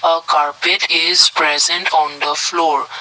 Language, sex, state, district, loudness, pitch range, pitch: English, male, Assam, Kamrup Metropolitan, -13 LUFS, 150-165 Hz, 155 Hz